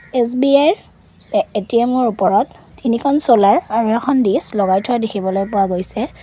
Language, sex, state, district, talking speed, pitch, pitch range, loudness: Assamese, female, Assam, Kamrup Metropolitan, 155 wpm, 235 Hz, 200-255 Hz, -16 LUFS